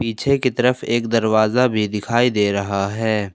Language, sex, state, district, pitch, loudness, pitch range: Hindi, male, Jharkhand, Ranchi, 110 Hz, -18 LUFS, 105-120 Hz